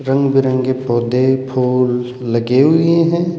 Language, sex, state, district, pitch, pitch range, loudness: Hindi, male, Rajasthan, Jaipur, 130 Hz, 125-140 Hz, -15 LUFS